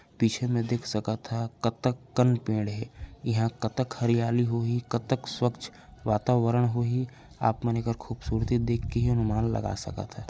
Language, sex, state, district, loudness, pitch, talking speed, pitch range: Chhattisgarhi, male, Chhattisgarh, Raigarh, -28 LUFS, 115 Hz, 150 wpm, 110-120 Hz